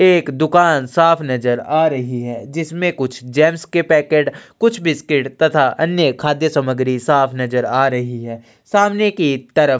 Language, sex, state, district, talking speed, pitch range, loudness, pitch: Hindi, male, Chhattisgarh, Sukma, 165 wpm, 130-165 Hz, -16 LUFS, 150 Hz